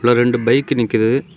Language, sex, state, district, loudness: Tamil, male, Tamil Nadu, Kanyakumari, -16 LUFS